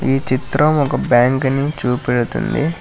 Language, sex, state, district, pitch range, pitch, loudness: Telugu, male, Telangana, Hyderabad, 125-145 Hz, 135 Hz, -17 LUFS